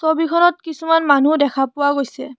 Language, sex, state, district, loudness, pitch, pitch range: Assamese, female, Assam, Kamrup Metropolitan, -16 LUFS, 290 Hz, 280-325 Hz